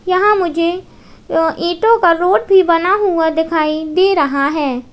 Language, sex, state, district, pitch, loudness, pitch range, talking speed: Hindi, female, Uttar Pradesh, Lalitpur, 340 Hz, -14 LUFS, 320-375 Hz, 160 wpm